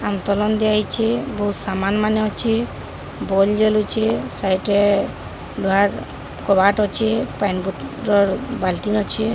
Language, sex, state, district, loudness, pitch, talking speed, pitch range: Odia, male, Odisha, Sambalpur, -20 LUFS, 205 Hz, 110 wpm, 195-215 Hz